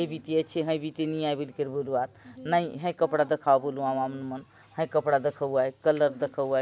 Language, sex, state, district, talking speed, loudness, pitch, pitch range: Chhattisgarhi, male, Chhattisgarh, Bastar, 190 wpm, -28 LUFS, 145 Hz, 135-155 Hz